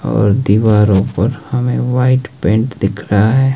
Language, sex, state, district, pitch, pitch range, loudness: Hindi, male, Himachal Pradesh, Shimla, 110 Hz, 100-125 Hz, -14 LUFS